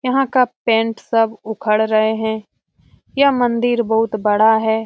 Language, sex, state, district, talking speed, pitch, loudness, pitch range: Hindi, female, Bihar, Jamui, 150 wpm, 225 Hz, -17 LUFS, 220-240 Hz